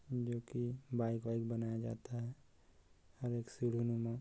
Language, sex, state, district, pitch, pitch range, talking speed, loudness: Hindi, male, Chhattisgarh, Korba, 115 Hz, 115-120 Hz, 155 wpm, -41 LUFS